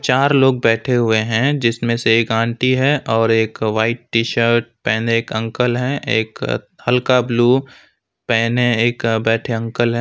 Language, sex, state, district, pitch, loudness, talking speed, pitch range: Hindi, male, West Bengal, Alipurduar, 115 Hz, -17 LUFS, 160 wpm, 115-125 Hz